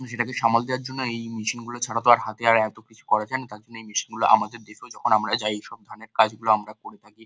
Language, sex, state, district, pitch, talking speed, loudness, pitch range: Bengali, male, West Bengal, Kolkata, 115 Hz, 255 wpm, -23 LUFS, 110-120 Hz